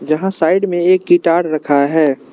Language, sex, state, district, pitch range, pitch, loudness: Hindi, male, Arunachal Pradesh, Lower Dibang Valley, 155-180 Hz, 165 Hz, -14 LUFS